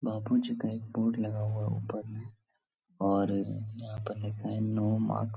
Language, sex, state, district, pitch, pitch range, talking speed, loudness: Hindi, male, Uttar Pradesh, Etah, 110 Hz, 105-110 Hz, 200 wpm, -32 LUFS